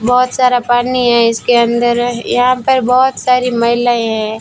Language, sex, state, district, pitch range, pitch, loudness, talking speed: Hindi, female, Rajasthan, Bikaner, 235-250 Hz, 245 Hz, -12 LUFS, 165 wpm